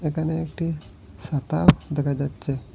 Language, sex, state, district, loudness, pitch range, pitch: Bengali, male, Assam, Hailakandi, -24 LUFS, 135-160 Hz, 145 Hz